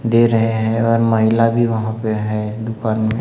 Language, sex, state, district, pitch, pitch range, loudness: Hindi, male, Maharashtra, Gondia, 115 Hz, 110-115 Hz, -17 LUFS